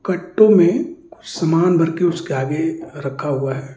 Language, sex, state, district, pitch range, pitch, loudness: Hindi, male, Delhi, New Delhi, 145-185 Hz, 165 Hz, -17 LUFS